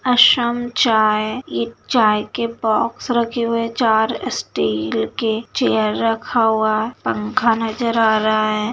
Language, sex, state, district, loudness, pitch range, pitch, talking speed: Hindi, female, Bihar, Saharsa, -18 LUFS, 215-235 Hz, 225 Hz, 145 wpm